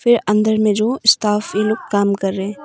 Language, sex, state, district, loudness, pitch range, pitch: Hindi, female, Arunachal Pradesh, Papum Pare, -16 LUFS, 205-220 Hz, 210 Hz